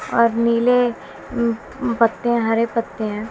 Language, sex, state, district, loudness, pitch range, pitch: Hindi, female, Bihar, West Champaran, -19 LUFS, 230-235 Hz, 235 Hz